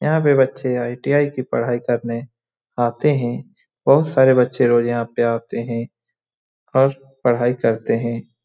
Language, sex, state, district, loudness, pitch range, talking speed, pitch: Hindi, male, Bihar, Lakhisarai, -19 LUFS, 115-135 Hz, 150 wpm, 120 Hz